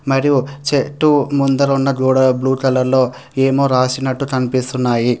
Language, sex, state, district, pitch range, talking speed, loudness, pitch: Telugu, male, Telangana, Hyderabad, 130-140 Hz, 125 wpm, -16 LUFS, 135 Hz